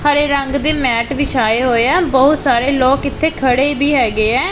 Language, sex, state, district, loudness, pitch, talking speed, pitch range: Punjabi, male, Punjab, Pathankot, -14 LUFS, 275 Hz, 200 wpm, 250-290 Hz